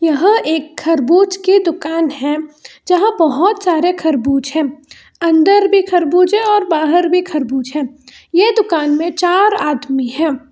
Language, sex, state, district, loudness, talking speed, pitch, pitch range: Hindi, female, Karnataka, Bangalore, -14 LUFS, 150 wpm, 325 Hz, 295-370 Hz